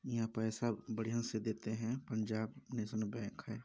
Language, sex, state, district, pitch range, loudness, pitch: Hindi, male, Chhattisgarh, Balrampur, 110-115 Hz, -40 LUFS, 110 Hz